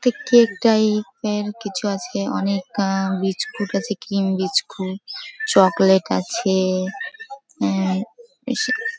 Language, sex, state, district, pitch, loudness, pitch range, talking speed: Bengali, female, West Bengal, Jhargram, 205 Hz, -20 LUFS, 195-250 Hz, 115 wpm